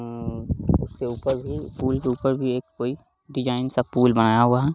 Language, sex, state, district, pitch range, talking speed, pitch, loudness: Hindi, male, Bihar, Lakhisarai, 120-130 Hz, 200 wpm, 125 Hz, -24 LUFS